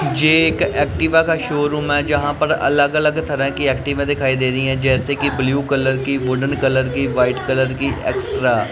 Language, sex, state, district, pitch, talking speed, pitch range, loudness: Hindi, male, Punjab, Pathankot, 140 Hz, 205 wpm, 130-145 Hz, -17 LUFS